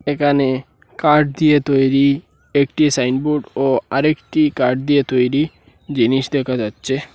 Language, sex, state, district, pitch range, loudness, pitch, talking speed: Bengali, male, Assam, Hailakandi, 130-145 Hz, -17 LUFS, 140 Hz, 120 wpm